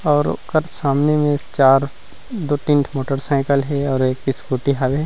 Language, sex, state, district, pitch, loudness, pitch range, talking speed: Chhattisgarhi, male, Chhattisgarh, Rajnandgaon, 140 Hz, -18 LUFS, 135-150 Hz, 180 wpm